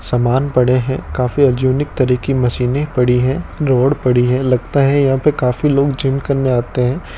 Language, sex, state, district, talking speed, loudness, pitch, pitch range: Hindi, male, Rajasthan, Bikaner, 190 wpm, -15 LUFS, 130 Hz, 125-140 Hz